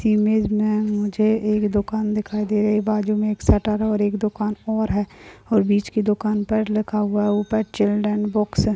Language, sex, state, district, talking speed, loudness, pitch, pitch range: Hindi, male, Uttarakhand, Tehri Garhwal, 210 wpm, -21 LUFS, 210 Hz, 210-215 Hz